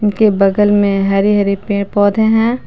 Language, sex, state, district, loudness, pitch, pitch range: Hindi, female, Jharkhand, Palamu, -13 LUFS, 205 Hz, 200-210 Hz